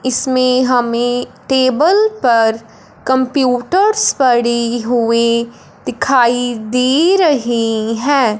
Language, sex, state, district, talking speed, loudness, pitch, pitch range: Hindi, male, Punjab, Fazilka, 80 wpm, -14 LUFS, 245 Hz, 235-265 Hz